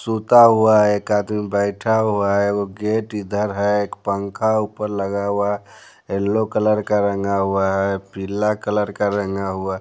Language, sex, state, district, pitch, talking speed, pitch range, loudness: Hindi, male, Bihar, Patna, 100 Hz, 185 wpm, 100-105 Hz, -19 LUFS